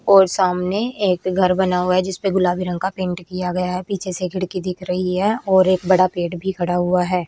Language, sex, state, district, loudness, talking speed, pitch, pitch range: Hindi, female, Haryana, Rohtak, -19 LUFS, 245 wpm, 185 Hz, 180-190 Hz